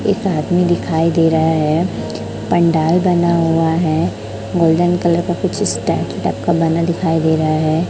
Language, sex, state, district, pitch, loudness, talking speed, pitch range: Hindi, female, Chhattisgarh, Raipur, 165 Hz, -16 LUFS, 165 wpm, 155-170 Hz